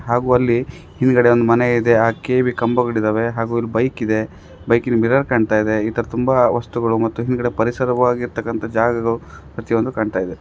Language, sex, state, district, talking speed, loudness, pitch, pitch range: Kannada, male, Karnataka, Raichur, 165 wpm, -18 LUFS, 115 Hz, 110-125 Hz